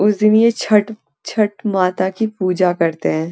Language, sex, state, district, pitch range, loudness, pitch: Hindi, female, Uttarakhand, Uttarkashi, 185-215 Hz, -16 LUFS, 210 Hz